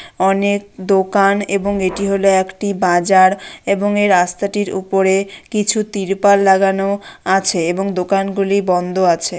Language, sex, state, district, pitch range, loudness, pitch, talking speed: Bengali, female, West Bengal, Dakshin Dinajpur, 190-200 Hz, -15 LUFS, 195 Hz, 130 wpm